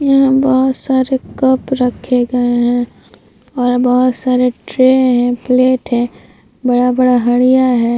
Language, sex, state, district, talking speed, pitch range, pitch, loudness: Hindi, female, Bihar, Vaishali, 130 wpm, 245-260 Hz, 250 Hz, -13 LUFS